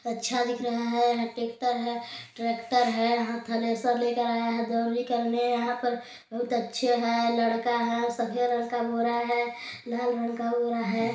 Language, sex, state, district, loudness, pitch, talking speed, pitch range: Hindi, male, Chhattisgarh, Balrampur, -28 LUFS, 235 Hz, 145 wpm, 235-240 Hz